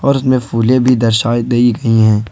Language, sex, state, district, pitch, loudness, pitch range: Hindi, male, Jharkhand, Ranchi, 120 Hz, -12 LUFS, 115-125 Hz